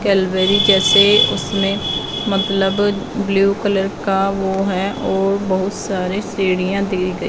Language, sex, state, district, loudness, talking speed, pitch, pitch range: Hindi, female, Punjab, Fazilka, -16 LUFS, 125 wpm, 195 Hz, 190-200 Hz